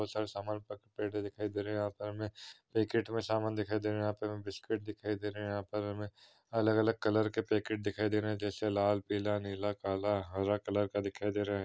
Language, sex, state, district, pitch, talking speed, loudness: Hindi, male, Maharashtra, Dhule, 105 Hz, 235 wpm, -35 LUFS